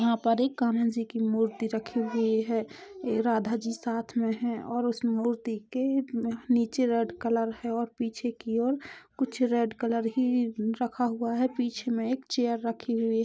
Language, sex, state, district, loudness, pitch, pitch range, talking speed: Hindi, female, Chhattisgarh, Korba, -29 LUFS, 235 Hz, 230-245 Hz, 185 wpm